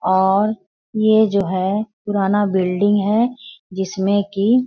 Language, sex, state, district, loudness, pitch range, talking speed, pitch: Hindi, female, Bihar, Bhagalpur, -18 LUFS, 190-215 Hz, 130 wpm, 205 Hz